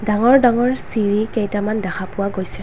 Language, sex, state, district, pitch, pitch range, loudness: Assamese, female, Assam, Kamrup Metropolitan, 210 Hz, 200-235 Hz, -18 LUFS